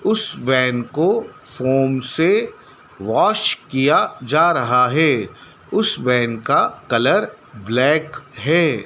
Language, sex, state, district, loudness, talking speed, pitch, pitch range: Hindi, male, Madhya Pradesh, Dhar, -18 LUFS, 110 wpm, 130 Hz, 125-160 Hz